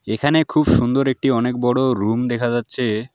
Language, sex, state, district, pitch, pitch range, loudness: Bengali, male, West Bengal, Alipurduar, 125 Hz, 120-135 Hz, -18 LUFS